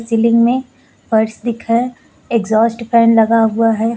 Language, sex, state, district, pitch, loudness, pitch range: Hindi, female, Uttar Pradesh, Lucknow, 230 Hz, -14 LUFS, 225-235 Hz